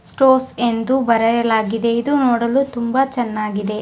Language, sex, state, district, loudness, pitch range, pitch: Kannada, female, Karnataka, Dharwad, -17 LUFS, 225-260 Hz, 235 Hz